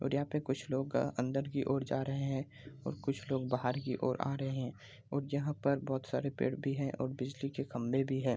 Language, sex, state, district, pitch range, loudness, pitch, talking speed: Hindi, male, Bihar, Araria, 130-140 Hz, -36 LUFS, 135 Hz, 230 wpm